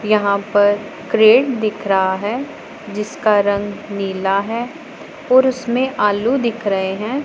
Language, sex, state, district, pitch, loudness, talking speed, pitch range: Hindi, female, Punjab, Pathankot, 215 Hz, -17 LUFS, 130 wpm, 205-260 Hz